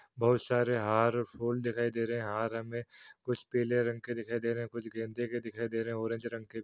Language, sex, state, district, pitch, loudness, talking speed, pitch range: Hindi, male, Chhattisgarh, Korba, 115 Hz, -33 LUFS, 235 wpm, 115-120 Hz